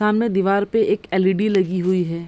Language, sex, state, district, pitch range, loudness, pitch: Hindi, female, Bihar, Madhepura, 185-210 Hz, -19 LUFS, 195 Hz